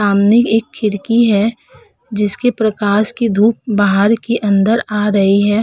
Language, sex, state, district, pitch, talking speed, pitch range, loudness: Hindi, female, Uttar Pradesh, Budaun, 215 Hz, 150 wpm, 205-230 Hz, -14 LUFS